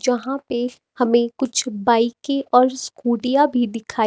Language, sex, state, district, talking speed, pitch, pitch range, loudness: Hindi, female, Himachal Pradesh, Shimla, 130 wpm, 245 Hz, 235-265 Hz, -20 LUFS